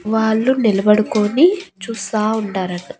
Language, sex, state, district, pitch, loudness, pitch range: Telugu, female, Andhra Pradesh, Annamaya, 220 Hz, -17 LUFS, 210-230 Hz